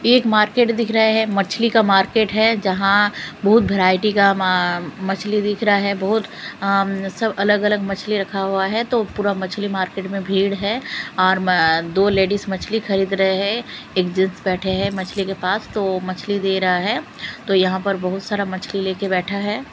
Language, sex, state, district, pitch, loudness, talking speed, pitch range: Hindi, female, Delhi, New Delhi, 195 Hz, -19 LUFS, 180 wpm, 190-210 Hz